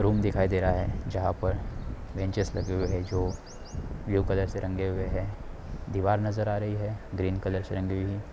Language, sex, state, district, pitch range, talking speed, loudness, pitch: Hindi, male, Bihar, Darbhanga, 95-100 Hz, 210 wpm, -30 LUFS, 95 Hz